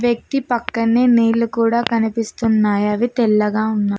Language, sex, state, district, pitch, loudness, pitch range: Telugu, female, Telangana, Mahabubabad, 230 Hz, -17 LUFS, 215-235 Hz